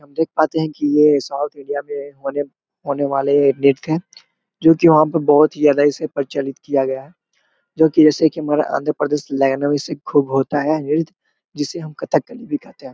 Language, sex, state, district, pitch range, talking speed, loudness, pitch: Hindi, male, Chhattisgarh, Korba, 140-160 Hz, 200 wpm, -18 LUFS, 150 Hz